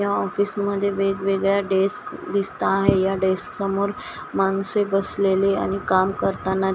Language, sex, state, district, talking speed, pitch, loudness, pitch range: Marathi, female, Maharashtra, Washim, 125 wpm, 195 Hz, -22 LUFS, 190-200 Hz